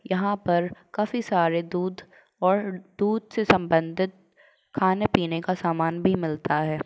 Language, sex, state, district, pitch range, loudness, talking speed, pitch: Hindi, female, Uttar Pradesh, Jalaun, 170-200 Hz, -25 LUFS, 140 wpm, 185 Hz